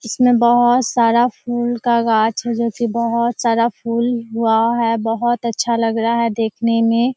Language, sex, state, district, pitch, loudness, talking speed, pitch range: Hindi, female, Bihar, Kishanganj, 235 Hz, -17 LUFS, 175 wpm, 230-240 Hz